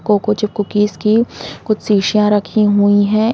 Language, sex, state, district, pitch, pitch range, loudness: Hindi, female, Uttarakhand, Uttarkashi, 210 Hz, 205-215 Hz, -14 LUFS